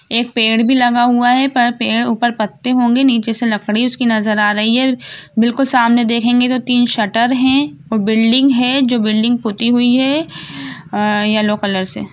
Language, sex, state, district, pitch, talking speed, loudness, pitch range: Hindi, female, Jharkhand, Sahebganj, 240 Hz, 190 wpm, -14 LUFS, 220-250 Hz